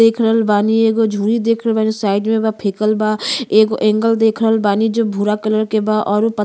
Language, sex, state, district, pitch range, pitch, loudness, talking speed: Bhojpuri, female, Uttar Pradesh, Ghazipur, 215-225 Hz, 220 Hz, -15 LUFS, 230 wpm